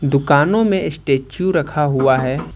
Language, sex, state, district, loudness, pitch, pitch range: Hindi, male, Uttar Pradesh, Lucknow, -16 LUFS, 145 Hz, 135-180 Hz